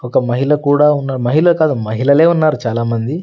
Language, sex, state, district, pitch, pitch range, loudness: Telugu, male, Andhra Pradesh, Sri Satya Sai, 140 Hz, 120-155 Hz, -14 LUFS